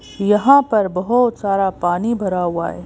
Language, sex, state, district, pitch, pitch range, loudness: Hindi, female, Madhya Pradesh, Bhopal, 200 Hz, 180-225 Hz, -17 LUFS